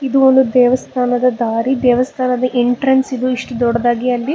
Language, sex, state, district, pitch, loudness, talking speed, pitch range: Kannada, female, Karnataka, Bangalore, 250 Hz, -15 LUFS, 140 wpm, 245-265 Hz